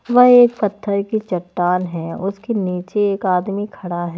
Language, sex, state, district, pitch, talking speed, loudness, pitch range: Hindi, female, Haryana, Jhajjar, 200 Hz, 170 wpm, -18 LUFS, 180-210 Hz